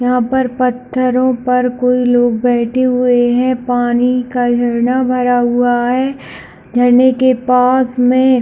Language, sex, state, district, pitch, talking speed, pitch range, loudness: Hindi, female, Chhattisgarh, Bilaspur, 250 Hz, 140 wpm, 245-255 Hz, -13 LUFS